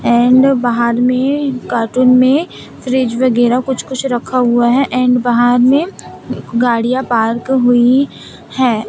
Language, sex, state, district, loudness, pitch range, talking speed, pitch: Hindi, female, Chhattisgarh, Raipur, -13 LUFS, 240-260 Hz, 130 wpm, 250 Hz